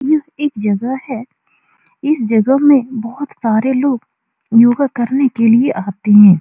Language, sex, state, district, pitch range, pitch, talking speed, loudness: Hindi, female, Bihar, Supaul, 225-280 Hz, 255 Hz, 150 wpm, -14 LUFS